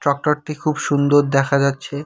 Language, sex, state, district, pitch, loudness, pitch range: Bengali, male, West Bengal, Cooch Behar, 145 Hz, -18 LUFS, 140-150 Hz